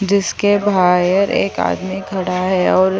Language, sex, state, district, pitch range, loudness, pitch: Hindi, female, Chhattisgarh, Sarguja, 180-195 Hz, -16 LUFS, 185 Hz